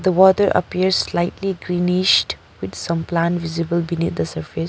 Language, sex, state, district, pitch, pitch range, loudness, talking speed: English, female, Arunachal Pradesh, Papum Pare, 170 Hz, 165-185 Hz, -19 LUFS, 155 wpm